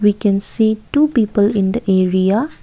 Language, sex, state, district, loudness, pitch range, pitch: English, female, Assam, Kamrup Metropolitan, -14 LUFS, 195-230 Hz, 210 Hz